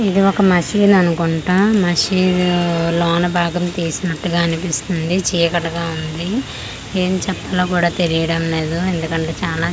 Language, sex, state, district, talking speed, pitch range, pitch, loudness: Telugu, female, Andhra Pradesh, Manyam, 115 wpm, 165-185 Hz, 175 Hz, -17 LUFS